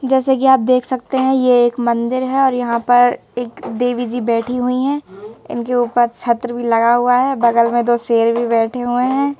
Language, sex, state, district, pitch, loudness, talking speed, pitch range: Hindi, female, Madhya Pradesh, Bhopal, 245 Hz, -16 LUFS, 215 wpm, 235-255 Hz